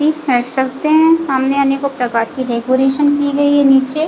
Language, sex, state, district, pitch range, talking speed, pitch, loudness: Hindi, female, Chhattisgarh, Bilaspur, 260-290 Hz, 190 wpm, 275 Hz, -14 LUFS